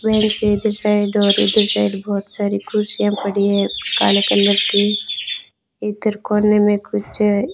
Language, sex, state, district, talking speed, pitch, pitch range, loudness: Hindi, female, Rajasthan, Bikaner, 150 wpm, 205 Hz, 200-210 Hz, -17 LUFS